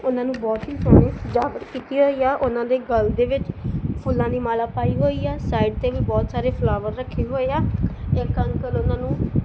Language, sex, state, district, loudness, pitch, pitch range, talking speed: Punjabi, female, Punjab, Kapurthala, -22 LUFS, 255 Hz, 235-270 Hz, 215 wpm